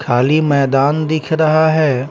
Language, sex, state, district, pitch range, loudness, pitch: Hindi, male, Bihar, Patna, 135-155 Hz, -14 LUFS, 150 Hz